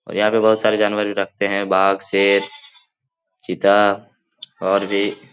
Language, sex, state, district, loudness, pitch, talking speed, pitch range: Hindi, male, Bihar, Jahanabad, -18 LUFS, 100 Hz, 170 wpm, 100-105 Hz